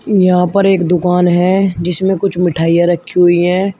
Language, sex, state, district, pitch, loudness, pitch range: Hindi, male, Uttar Pradesh, Shamli, 180 Hz, -12 LUFS, 175-190 Hz